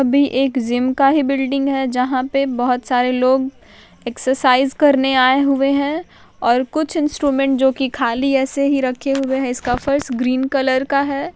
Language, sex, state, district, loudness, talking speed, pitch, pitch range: Hindi, female, Bihar, Saran, -17 LUFS, 175 wpm, 270 Hz, 255-275 Hz